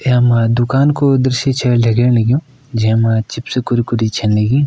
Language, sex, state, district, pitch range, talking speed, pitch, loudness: Kumaoni, male, Uttarakhand, Uttarkashi, 115-130 Hz, 165 wpm, 120 Hz, -14 LUFS